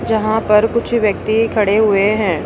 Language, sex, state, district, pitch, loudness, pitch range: Hindi, female, Rajasthan, Jaipur, 215 Hz, -15 LUFS, 210-220 Hz